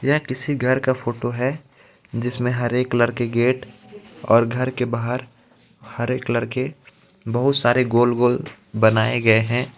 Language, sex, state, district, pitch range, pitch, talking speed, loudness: Hindi, male, Jharkhand, Ranchi, 120-130 Hz, 125 Hz, 155 wpm, -20 LUFS